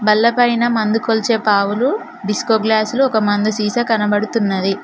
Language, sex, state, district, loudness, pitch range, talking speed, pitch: Telugu, female, Telangana, Mahabubabad, -16 LUFS, 210-230 Hz, 125 wpm, 220 Hz